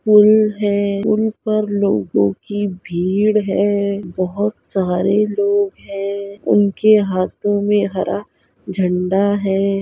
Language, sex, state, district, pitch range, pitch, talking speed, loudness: Hindi, female, Bihar, Kishanganj, 190-210 Hz, 200 Hz, 110 wpm, -17 LUFS